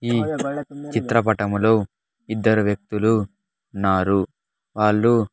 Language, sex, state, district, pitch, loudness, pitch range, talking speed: Telugu, male, Andhra Pradesh, Sri Satya Sai, 110 Hz, -21 LUFS, 105-120 Hz, 70 wpm